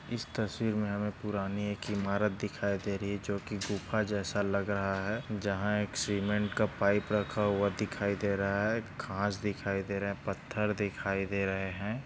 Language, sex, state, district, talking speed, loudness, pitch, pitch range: Hindi, male, Maharashtra, Sindhudurg, 200 wpm, -33 LUFS, 100 Hz, 100-105 Hz